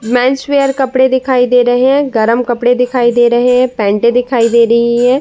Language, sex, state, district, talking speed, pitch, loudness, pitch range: Hindi, female, Uttar Pradesh, Muzaffarnagar, 205 wpm, 245 Hz, -11 LUFS, 235-260 Hz